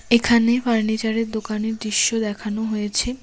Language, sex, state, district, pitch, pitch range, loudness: Bengali, female, West Bengal, Cooch Behar, 220 Hz, 215-235 Hz, -21 LUFS